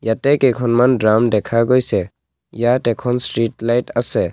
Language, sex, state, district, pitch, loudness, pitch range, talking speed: Assamese, male, Assam, Kamrup Metropolitan, 120 Hz, -17 LUFS, 115-125 Hz, 140 wpm